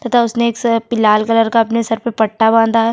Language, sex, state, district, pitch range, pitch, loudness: Hindi, female, Chhattisgarh, Sukma, 225-235 Hz, 230 Hz, -14 LUFS